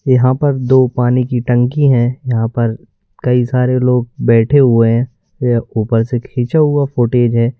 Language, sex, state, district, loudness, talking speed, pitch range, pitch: Hindi, male, Madhya Pradesh, Bhopal, -13 LUFS, 175 wpm, 120-130 Hz, 125 Hz